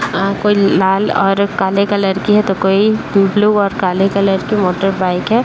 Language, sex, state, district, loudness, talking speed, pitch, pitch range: Hindi, female, Uttar Pradesh, Deoria, -14 LUFS, 185 wpm, 195 Hz, 190-205 Hz